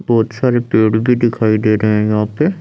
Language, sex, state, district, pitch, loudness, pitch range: Hindi, male, Chandigarh, Chandigarh, 110 Hz, -14 LUFS, 110-120 Hz